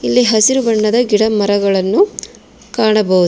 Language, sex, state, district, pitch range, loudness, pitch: Kannada, female, Karnataka, Bangalore, 200-235 Hz, -13 LUFS, 215 Hz